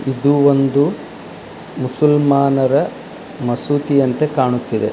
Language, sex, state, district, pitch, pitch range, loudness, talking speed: Kannada, male, Karnataka, Dharwad, 140 Hz, 130-145 Hz, -16 LUFS, 60 wpm